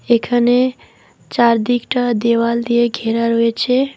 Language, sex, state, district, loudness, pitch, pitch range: Bengali, female, West Bengal, Alipurduar, -16 LUFS, 235 Hz, 230-245 Hz